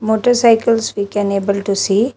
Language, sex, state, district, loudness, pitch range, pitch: English, female, Telangana, Hyderabad, -15 LUFS, 200-230 Hz, 215 Hz